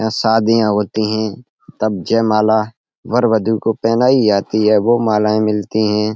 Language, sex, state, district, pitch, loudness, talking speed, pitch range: Hindi, male, Uttar Pradesh, Etah, 110 Hz, -15 LUFS, 155 wpm, 105-115 Hz